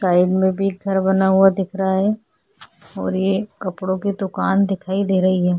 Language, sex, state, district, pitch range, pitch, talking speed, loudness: Hindi, female, Chhattisgarh, Korba, 185-195 Hz, 190 Hz, 195 wpm, -19 LUFS